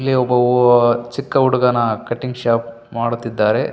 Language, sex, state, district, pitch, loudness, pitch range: Kannada, male, Karnataka, Bellary, 120 Hz, -17 LUFS, 115-125 Hz